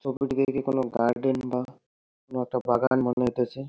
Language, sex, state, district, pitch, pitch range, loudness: Bengali, male, West Bengal, Jalpaiguri, 130 Hz, 125-135 Hz, -26 LUFS